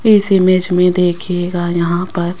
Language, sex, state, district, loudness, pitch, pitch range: Hindi, female, Rajasthan, Jaipur, -14 LUFS, 180 Hz, 175-185 Hz